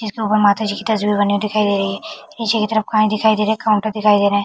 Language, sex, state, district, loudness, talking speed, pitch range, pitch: Hindi, female, Chhattisgarh, Bilaspur, -17 LUFS, 295 wpm, 205-220 Hz, 215 Hz